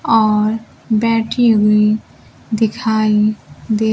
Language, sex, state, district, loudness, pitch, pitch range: Hindi, female, Bihar, Kaimur, -15 LUFS, 220 Hz, 210-225 Hz